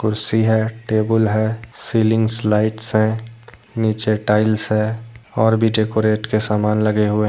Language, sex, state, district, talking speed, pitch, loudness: Hindi, male, Jharkhand, Deoghar, 150 wpm, 110 Hz, -18 LUFS